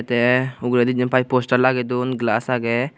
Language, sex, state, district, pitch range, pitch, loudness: Chakma, male, Tripura, Unakoti, 120-130 Hz, 125 Hz, -19 LUFS